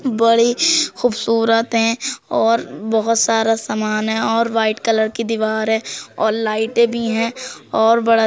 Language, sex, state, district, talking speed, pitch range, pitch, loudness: Hindi, female, Uttar Pradesh, Jyotiba Phule Nagar, 150 wpm, 220-230 Hz, 225 Hz, -17 LUFS